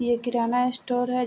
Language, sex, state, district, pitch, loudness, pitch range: Hindi, female, Bihar, Vaishali, 245 Hz, -25 LUFS, 240-250 Hz